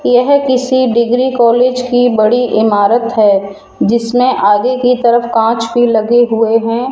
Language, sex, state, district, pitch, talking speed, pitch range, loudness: Hindi, female, Rajasthan, Jaipur, 235 Hz, 145 wpm, 225-250 Hz, -11 LUFS